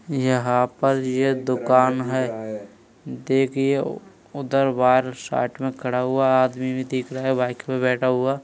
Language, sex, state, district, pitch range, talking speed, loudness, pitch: Hindi, male, Uttar Pradesh, Hamirpur, 125-135 Hz, 140 wpm, -22 LUFS, 130 Hz